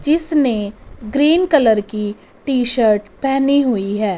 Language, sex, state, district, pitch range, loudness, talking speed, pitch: Hindi, female, Punjab, Fazilka, 210-280 Hz, -16 LUFS, 130 wpm, 240 Hz